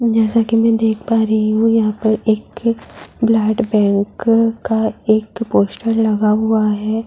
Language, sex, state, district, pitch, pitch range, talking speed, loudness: Hindi, female, Uttar Pradesh, Budaun, 220 Hz, 215-225 Hz, 155 wpm, -16 LUFS